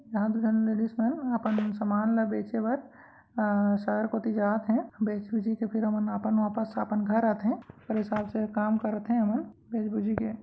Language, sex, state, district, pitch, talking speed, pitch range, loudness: Chhattisgarhi, female, Chhattisgarh, Raigarh, 220 Hz, 195 wpm, 215-225 Hz, -29 LUFS